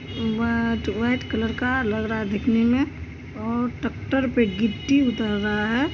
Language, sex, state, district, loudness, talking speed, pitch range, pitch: Maithili, female, Bihar, Supaul, -23 LUFS, 160 wpm, 225-250 Hz, 230 Hz